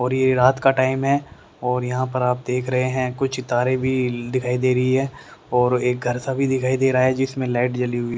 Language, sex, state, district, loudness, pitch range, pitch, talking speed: Hindi, male, Haryana, Rohtak, -21 LUFS, 125-130 Hz, 130 Hz, 240 wpm